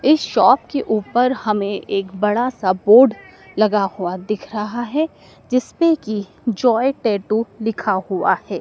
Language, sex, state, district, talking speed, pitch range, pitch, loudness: Hindi, male, Madhya Pradesh, Dhar, 155 wpm, 200-250 Hz, 215 Hz, -18 LUFS